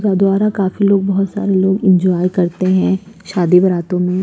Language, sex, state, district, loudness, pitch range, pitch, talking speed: Hindi, female, Uttar Pradesh, Jyotiba Phule Nagar, -14 LUFS, 180-195 Hz, 190 Hz, 140 wpm